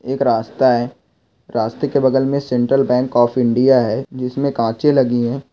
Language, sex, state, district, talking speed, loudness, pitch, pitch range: Hindi, male, Goa, North and South Goa, 175 wpm, -17 LUFS, 130 Hz, 120-135 Hz